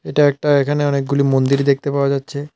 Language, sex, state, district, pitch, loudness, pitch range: Bengali, male, Tripura, South Tripura, 140 Hz, -17 LUFS, 140-145 Hz